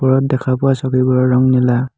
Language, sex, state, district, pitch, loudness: Assamese, male, Assam, Hailakandi, 130 Hz, -14 LUFS